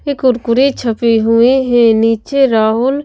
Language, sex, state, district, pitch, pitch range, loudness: Hindi, female, Himachal Pradesh, Shimla, 240 Hz, 225-265 Hz, -12 LUFS